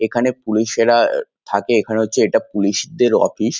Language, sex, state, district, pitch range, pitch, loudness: Bengali, male, West Bengal, Kolkata, 110-125 Hz, 115 Hz, -17 LUFS